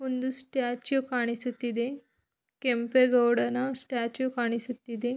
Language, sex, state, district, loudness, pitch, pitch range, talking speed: Kannada, female, Karnataka, Mysore, -28 LUFS, 250 Hz, 240-260 Hz, 70 wpm